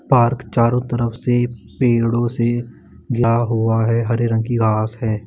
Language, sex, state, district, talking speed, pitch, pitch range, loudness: Hindi, male, Bihar, Bhagalpur, 160 wpm, 120 Hz, 115-120 Hz, -18 LUFS